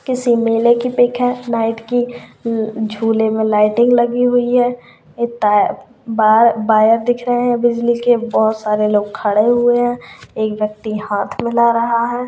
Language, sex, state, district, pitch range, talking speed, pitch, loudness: Kumaoni, female, Uttarakhand, Tehri Garhwal, 220-245 Hz, 160 wpm, 235 Hz, -15 LUFS